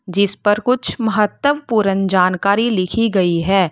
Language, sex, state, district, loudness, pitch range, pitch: Hindi, female, Uttar Pradesh, Lalitpur, -16 LUFS, 185-225 Hz, 200 Hz